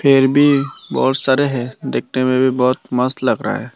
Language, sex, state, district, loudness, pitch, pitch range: Hindi, male, Tripura, Dhalai, -16 LUFS, 130 Hz, 130-135 Hz